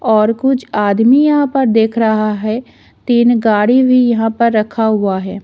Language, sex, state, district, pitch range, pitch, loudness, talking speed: Hindi, female, Delhi, New Delhi, 215-250 Hz, 225 Hz, -13 LUFS, 175 wpm